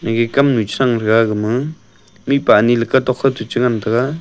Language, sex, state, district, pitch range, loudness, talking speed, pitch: Wancho, male, Arunachal Pradesh, Longding, 110-130 Hz, -15 LUFS, 185 wpm, 120 Hz